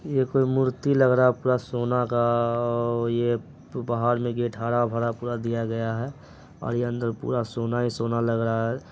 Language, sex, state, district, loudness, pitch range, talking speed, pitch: Hindi, male, Bihar, Araria, -25 LUFS, 115-125 Hz, 155 wpm, 120 Hz